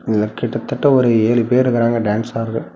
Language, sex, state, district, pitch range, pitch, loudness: Tamil, male, Tamil Nadu, Namakkal, 115-125 Hz, 115 Hz, -16 LUFS